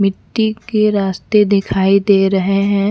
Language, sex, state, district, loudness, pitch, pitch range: Hindi, female, Chhattisgarh, Bastar, -14 LUFS, 200 Hz, 195-210 Hz